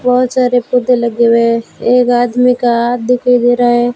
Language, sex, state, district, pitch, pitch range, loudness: Hindi, female, Rajasthan, Bikaner, 245 Hz, 240-250 Hz, -12 LUFS